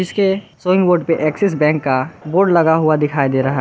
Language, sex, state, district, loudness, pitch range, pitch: Hindi, male, Jharkhand, Garhwa, -16 LUFS, 150-185 Hz, 160 Hz